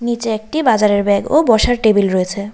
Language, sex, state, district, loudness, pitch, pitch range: Bengali, female, Tripura, West Tripura, -14 LUFS, 215 Hz, 200-235 Hz